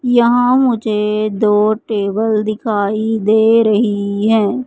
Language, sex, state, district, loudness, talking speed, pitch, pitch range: Hindi, male, Madhya Pradesh, Katni, -14 LUFS, 105 wpm, 215 Hz, 210-230 Hz